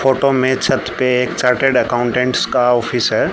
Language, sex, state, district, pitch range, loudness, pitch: Hindi, male, Haryana, Charkhi Dadri, 120-130 Hz, -15 LUFS, 125 Hz